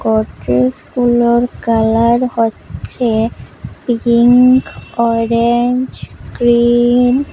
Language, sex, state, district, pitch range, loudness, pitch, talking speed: Bengali, female, Assam, Hailakandi, 230-245 Hz, -13 LUFS, 235 Hz, 55 wpm